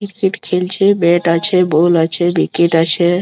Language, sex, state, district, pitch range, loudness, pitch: Bengali, male, West Bengal, Malda, 170-190 Hz, -13 LUFS, 175 Hz